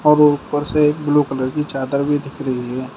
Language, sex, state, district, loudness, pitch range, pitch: Hindi, male, Uttar Pradesh, Shamli, -18 LUFS, 135-150 Hz, 145 Hz